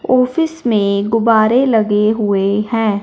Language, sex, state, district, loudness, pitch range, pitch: Hindi, male, Punjab, Fazilka, -14 LUFS, 205-240 Hz, 220 Hz